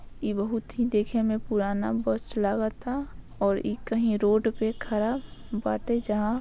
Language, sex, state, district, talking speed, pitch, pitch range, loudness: Bhojpuri, female, Bihar, Saran, 160 wpm, 220 Hz, 205-230 Hz, -28 LUFS